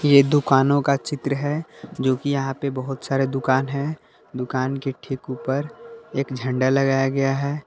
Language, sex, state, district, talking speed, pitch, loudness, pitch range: Hindi, male, Jharkhand, Palamu, 170 wpm, 135 Hz, -22 LUFS, 130-140 Hz